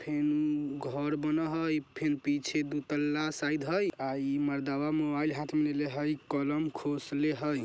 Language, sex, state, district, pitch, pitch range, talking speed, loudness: Bajjika, male, Bihar, Vaishali, 150 Hz, 145-150 Hz, 165 wpm, -32 LUFS